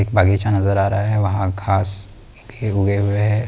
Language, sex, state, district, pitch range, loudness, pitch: Hindi, male, Chhattisgarh, Bilaspur, 100-105 Hz, -19 LUFS, 100 Hz